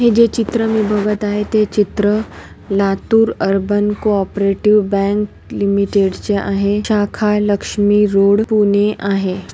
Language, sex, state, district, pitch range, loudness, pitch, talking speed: Marathi, female, Maharashtra, Pune, 200-210 Hz, -15 LUFS, 205 Hz, 125 wpm